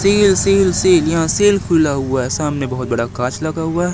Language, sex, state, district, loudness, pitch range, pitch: Hindi, male, Madhya Pradesh, Katni, -15 LUFS, 135-190 Hz, 160 Hz